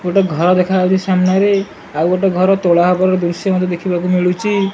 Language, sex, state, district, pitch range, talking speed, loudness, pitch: Odia, male, Odisha, Malkangiri, 180-190 Hz, 190 wpm, -14 LUFS, 185 Hz